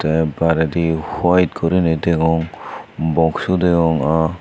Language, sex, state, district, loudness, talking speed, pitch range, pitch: Chakma, male, Tripura, Unakoti, -17 LUFS, 110 wpm, 80-85 Hz, 80 Hz